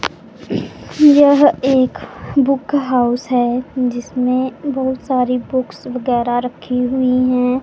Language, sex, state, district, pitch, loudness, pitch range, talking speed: Hindi, female, Punjab, Pathankot, 255 Hz, -16 LUFS, 250-265 Hz, 100 wpm